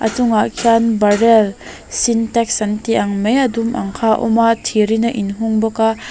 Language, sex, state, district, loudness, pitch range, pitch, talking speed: Mizo, female, Mizoram, Aizawl, -15 LUFS, 215-230 Hz, 225 Hz, 195 wpm